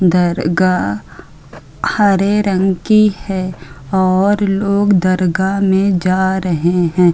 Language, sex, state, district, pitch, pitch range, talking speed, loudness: Hindi, female, Uttar Pradesh, Hamirpur, 190 Hz, 180-195 Hz, 100 wpm, -14 LUFS